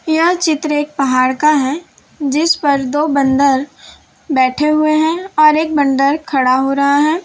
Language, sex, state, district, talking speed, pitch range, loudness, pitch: Hindi, female, Gujarat, Valsad, 165 wpm, 275-310 Hz, -14 LUFS, 295 Hz